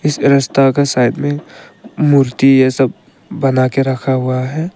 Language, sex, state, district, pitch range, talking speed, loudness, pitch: Hindi, male, Arunachal Pradesh, Longding, 130-145 Hz, 165 wpm, -13 LUFS, 135 Hz